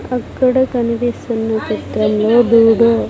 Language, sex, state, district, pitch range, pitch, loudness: Telugu, female, Andhra Pradesh, Sri Satya Sai, 225-245 Hz, 230 Hz, -14 LUFS